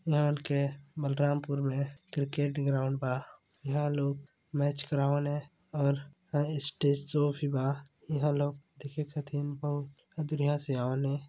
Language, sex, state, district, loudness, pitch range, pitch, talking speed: Chhattisgarhi, male, Chhattisgarh, Balrampur, -32 LUFS, 140-145 Hz, 145 Hz, 60 wpm